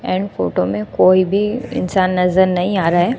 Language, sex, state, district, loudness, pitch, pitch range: Hindi, female, Gujarat, Gandhinagar, -16 LUFS, 185 Hz, 175-195 Hz